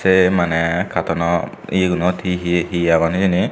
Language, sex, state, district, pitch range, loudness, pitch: Chakma, male, Tripura, Dhalai, 85-90 Hz, -18 LUFS, 85 Hz